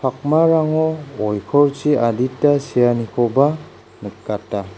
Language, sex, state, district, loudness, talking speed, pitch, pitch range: Garo, male, Meghalaya, South Garo Hills, -18 LUFS, 65 wpm, 135 Hz, 115-150 Hz